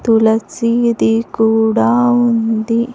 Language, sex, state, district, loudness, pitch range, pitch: Telugu, female, Andhra Pradesh, Sri Satya Sai, -14 LUFS, 220-230 Hz, 225 Hz